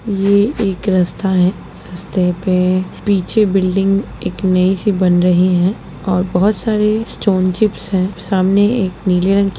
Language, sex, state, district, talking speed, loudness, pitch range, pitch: Hindi, female, Bihar, Lakhisarai, 165 wpm, -15 LUFS, 185-200 Hz, 190 Hz